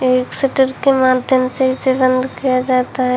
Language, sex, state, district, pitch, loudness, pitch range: Hindi, female, Uttar Pradesh, Shamli, 255 Hz, -15 LUFS, 255-265 Hz